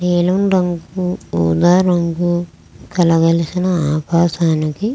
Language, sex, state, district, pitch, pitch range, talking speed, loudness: Telugu, female, Andhra Pradesh, Krishna, 175 Hz, 165-180 Hz, 75 wpm, -16 LUFS